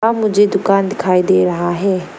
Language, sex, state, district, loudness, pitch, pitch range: Hindi, female, Arunachal Pradesh, Lower Dibang Valley, -15 LUFS, 190 Hz, 180-205 Hz